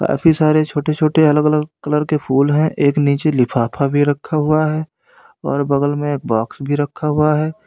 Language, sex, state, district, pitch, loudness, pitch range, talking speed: Hindi, male, Uttar Pradesh, Lalitpur, 150 Hz, -16 LUFS, 140-155 Hz, 205 wpm